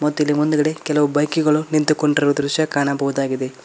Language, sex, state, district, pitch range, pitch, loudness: Kannada, male, Karnataka, Koppal, 145-155 Hz, 150 Hz, -18 LUFS